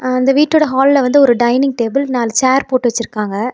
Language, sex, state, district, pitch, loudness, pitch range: Tamil, female, Tamil Nadu, Nilgiris, 255 Hz, -13 LUFS, 240-275 Hz